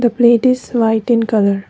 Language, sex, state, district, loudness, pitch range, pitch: English, female, Assam, Kamrup Metropolitan, -14 LUFS, 220-240 Hz, 235 Hz